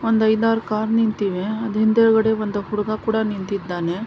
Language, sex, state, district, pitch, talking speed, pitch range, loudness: Kannada, female, Karnataka, Mysore, 215 Hz, 160 wpm, 205-220 Hz, -20 LUFS